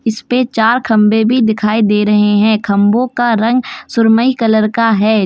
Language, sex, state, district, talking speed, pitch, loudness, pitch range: Hindi, female, Uttar Pradesh, Lalitpur, 180 wpm, 220 Hz, -12 LUFS, 215-230 Hz